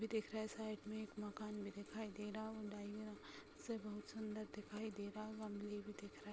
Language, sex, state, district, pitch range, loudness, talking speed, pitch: Hindi, female, Uttar Pradesh, Hamirpur, 210-220 Hz, -49 LUFS, 225 wpm, 215 Hz